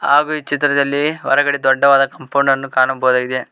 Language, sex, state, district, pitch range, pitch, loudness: Kannada, male, Karnataka, Koppal, 135-145 Hz, 140 Hz, -15 LUFS